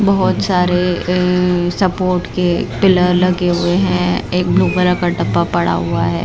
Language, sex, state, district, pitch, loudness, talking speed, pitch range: Hindi, female, Maharashtra, Mumbai Suburban, 180 Hz, -15 LUFS, 155 wpm, 175-180 Hz